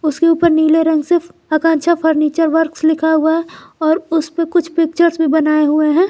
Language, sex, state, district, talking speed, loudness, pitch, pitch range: Hindi, female, Jharkhand, Garhwa, 185 wpm, -14 LUFS, 320 Hz, 315-335 Hz